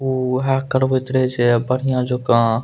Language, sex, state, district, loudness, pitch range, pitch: Maithili, male, Bihar, Purnia, -18 LUFS, 120-130 Hz, 130 Hz